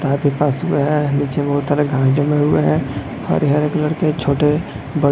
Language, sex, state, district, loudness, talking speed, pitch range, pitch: Hindi, male, Jharkhand, Jamtara, -17 LUFS, 185 wpm, 140-150 Hz, 145 Hz